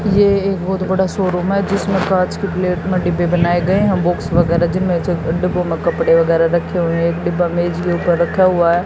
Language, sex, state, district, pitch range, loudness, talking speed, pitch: Hindi, female, Haryana, Jhajjar, 170-190 Hz, -16 LUFS, 215 wpm, 175 Hz